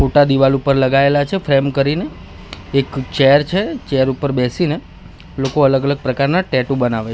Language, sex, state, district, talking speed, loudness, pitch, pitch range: Gujarati, male, Gujarat, Gandhinagar, 160 wpm, -16 LUFS, 135 Hz, 130-145 Hz